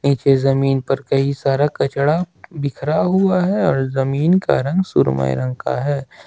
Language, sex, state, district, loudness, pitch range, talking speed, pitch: Hindi, male, Jharkhand, Ranchi, -18 LUFS, 135-160 Hz, 165 wpm, 140 Hz